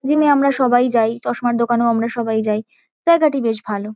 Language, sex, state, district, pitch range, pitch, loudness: Bengali, female, West Bengal, Kolkata, 225-270 Hz, 235 Hz, -17 LUFS